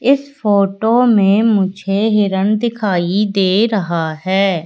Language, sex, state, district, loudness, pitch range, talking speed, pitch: Hindi, female, Madhya Pradesh, Katni, -15 LUFS, 190-220 Hz, 115 wpm, 200 Hz